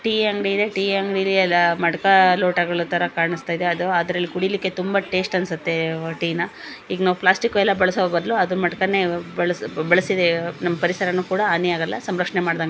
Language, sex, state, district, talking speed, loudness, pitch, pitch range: Kannada, female, Karnataka, Dakshina Kannada, 165 wpm, -20 LUFS, 180 Hz, 170-190 Hz